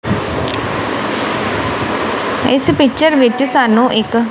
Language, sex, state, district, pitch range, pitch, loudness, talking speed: Punjabi, female, Punjab, Kapurthala, 235-280 Hz, 255 Hz, -14 LUFS, 70 wpm